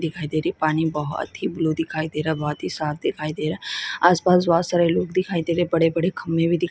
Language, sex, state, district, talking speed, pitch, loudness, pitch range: Hindi, female, Chhattisgarh, Sukma, 275 wpm, 165 Hz, -22 LUFS, 155-170 Hz